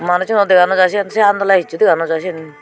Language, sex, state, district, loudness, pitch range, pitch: Chakma, female, Tripura, Unakoti, -13 LUFS, 165-200 Hz, 185 Hz